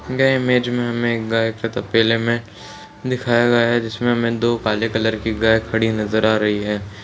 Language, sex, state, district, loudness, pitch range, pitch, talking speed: Hindi, male, Uttar Pradesh, Ghazipur, -19 LUFS, 110-120 Hz, 115 Hz, 195 wpm